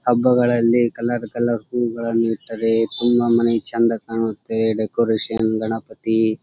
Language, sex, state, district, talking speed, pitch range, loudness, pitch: Kannada, male, Karnataka, Dharwad, 105 wpm, 110-120 Hz, -20 LUFS, 115 Hz